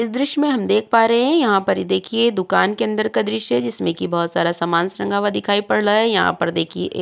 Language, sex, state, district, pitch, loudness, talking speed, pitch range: Hindi, female, Uttar Pradesh, Jyotiba Phule Nagar, 205 Hz, -18 LUFS, 290 wpm, 185-230 Hz